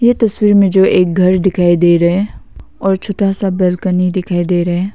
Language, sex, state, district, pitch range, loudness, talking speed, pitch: Hindi, female, Arunachal Pradesh, Papum Pare, 180-195 Hz, -13 LUFS, 220 wpm, 185 Hz